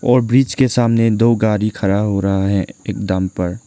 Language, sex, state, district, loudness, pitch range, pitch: Hindi, male, Arunachal Pradesh, Lower Dibang Valley, -16 LUFS, 100-115 Hz, 105 Hz